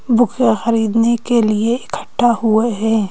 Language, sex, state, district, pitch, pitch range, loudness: Hindi, female, Madhya Pradesh, Bhopal, 230 Hz, 220-235 Hz, -16 LUFS